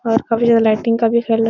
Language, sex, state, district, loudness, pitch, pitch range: Hindi, female, Uttar Pradesh, Etah, -15 LUFS, 230 Hz, 225-230 Hz